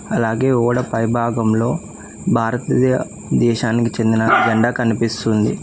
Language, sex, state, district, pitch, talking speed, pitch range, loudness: Telugu, male, Telangana, Hyderabad, 115 Hz, 95 wpm, 110-120 Hz, -17 LUFS